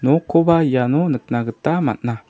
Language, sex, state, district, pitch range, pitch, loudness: Garo, male, Meghalaya, South Garo Hills, 120-165 Hz, 145 Hz, -18 LUFS